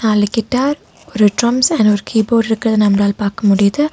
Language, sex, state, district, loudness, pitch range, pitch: Tamil, female, Tamil Nadu, Nilgiris, -14 LUFS, 205-235 Hz, 220 Hz